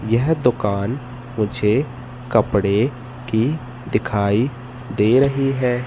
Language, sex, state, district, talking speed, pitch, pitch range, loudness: Hindi, male, Madhya Pradesh, Katni, 90 wpm, 125 Hz, 110-125 Hz, -20 LUFS